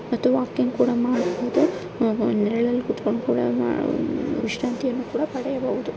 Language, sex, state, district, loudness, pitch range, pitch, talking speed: Kannada, female, Karnataka, Bijapur, -23 LUFS, 230-260 Hz, 250 Hz, 120 wpm